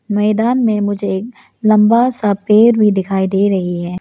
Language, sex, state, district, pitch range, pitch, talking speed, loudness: Hindi, female, Arunachal Pradesh, Lower Dibang Valley, 195-225 Hz, 210 Hz, 180 wpm, -14 LUFS